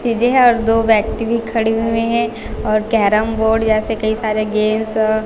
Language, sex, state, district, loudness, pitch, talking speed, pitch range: Hindi, female, Chhattisgarh, Raipur, -16 LUFS, 225 Hz, 195 wpm, 215-230 Hz